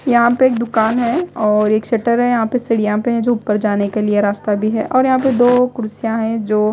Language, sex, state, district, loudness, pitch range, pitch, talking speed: Hindi, female, Odisha, Malkangiri, -16 LUFS, 215-245 Hz, 225 Hz, 260 wpm